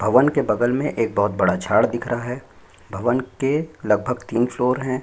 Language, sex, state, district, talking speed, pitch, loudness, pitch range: Hindi, male, Chhattisgarh, Korba, 205 wpm, 125 Hz, -21 LUFS, 120-130 Hz